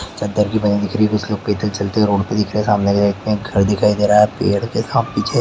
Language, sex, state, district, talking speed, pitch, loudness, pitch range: Hindi, male, Bihar, Gopalganj, 300 wpm, 105 Hz, -17 LUFS, 100-105 Hz